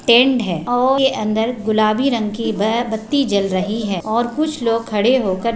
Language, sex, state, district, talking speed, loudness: Hindi, male, Bihar, Begusarai, 195 wpm, -17 LUFS